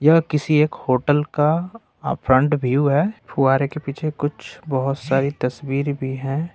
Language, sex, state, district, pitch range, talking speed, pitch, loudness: Hindi, male, Jharkhand, Ranchi, 135-155 Hz, 145 wpm, 145 Hz, -20 LUFS